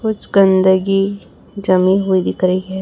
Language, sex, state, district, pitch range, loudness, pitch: Hindi, female, Chhattisgarh, Raipur, 185-195 Hz, -15 LUFS, 190 Hz